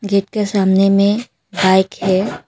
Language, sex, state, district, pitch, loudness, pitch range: Hindi, female, Arunachal Pradesh, Papum Pare, 195 Hz, -15 LUFS, 190-205 Hz